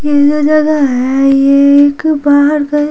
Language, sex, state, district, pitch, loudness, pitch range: Hindi, female, Bihar, Patna, 285 Hz, -9 LUFS, 280-295 Hz